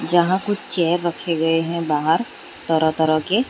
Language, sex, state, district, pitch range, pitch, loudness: Hindi, female, Gujarat, Valsad, 160-185 Hz, 170 Hz, -20 LUFS